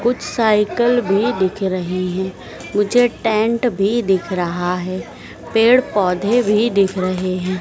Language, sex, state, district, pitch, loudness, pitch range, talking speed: Hindi, female, Madhya Pradesh, Dhar, 200 Hz, -17 LUFS, 185-230 Hz, 140 wpm